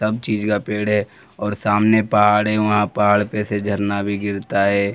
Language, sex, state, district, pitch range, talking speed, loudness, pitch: Hindi, male, Bihar, Jamui, 100-105 Hz, 205 wpm, -19 LUFS, 105 Hz